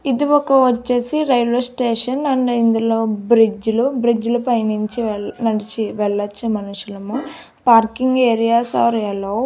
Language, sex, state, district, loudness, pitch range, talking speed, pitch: Telugu, female, Andhra Pradesh, Annamaya, -17 LUFS, 220-250 Hz, 140 wpm, 235 Hz